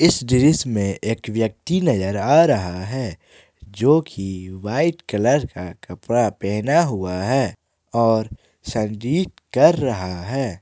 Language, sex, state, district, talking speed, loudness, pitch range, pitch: Hindi, male, Jharkhand, Ranchi, 130 wpm, -20 LUFS, 95-135 Hz, 110 Hz